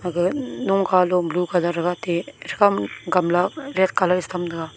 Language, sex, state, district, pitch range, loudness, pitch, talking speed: Wancho, female, Arunachal Pradesh, Longding, 175-185 Hz, -21 LUFS, 180 Hz, 150 wpm